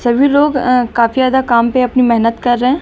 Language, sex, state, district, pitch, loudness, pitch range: Hindi, female, Uttar Pradesh, Lucknow, 250 Hz, -12 LUFS, 235-260 Hz